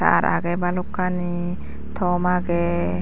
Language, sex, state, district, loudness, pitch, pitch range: Chakma, female, Tripura, Dhalai, -23 LUFS, 180 Hz, 175-180 Hz